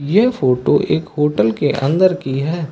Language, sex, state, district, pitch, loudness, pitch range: Hindi, male, Uttar Pradesh, Lucknow, 150 Hz, -16 LUFS, 135-175 Hz